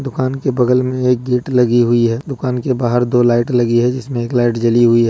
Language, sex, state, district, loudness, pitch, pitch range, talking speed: Hindi, male, Jharkhand, Deoghar, -15 LUFS, 125 Hz, 120-130 Hz, 270 wpm